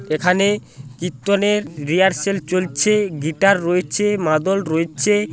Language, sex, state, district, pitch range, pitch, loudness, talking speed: Bengali, male, West Bengal, Paschim Medinipur, 155-200 Hz, 185 Hz, -18 LUFS, 90 wpm